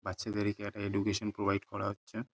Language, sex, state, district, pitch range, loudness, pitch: Bengali, male, West Bengal, Paschim Medinipur, 100-105 Hz, -35 LUFS, 105 Hz